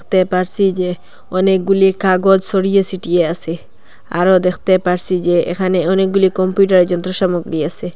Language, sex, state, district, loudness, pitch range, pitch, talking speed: Bengali, female, Assam, Hailakandi, -14 LUFS, 175-190 Hz, 185 Hz, 145 wpm